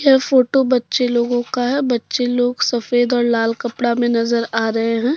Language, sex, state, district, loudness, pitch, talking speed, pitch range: Hindi, female, Jharkhand, Deoghar, -17 LUFS, 245 Hz, 195 wpm, 235-250 Hz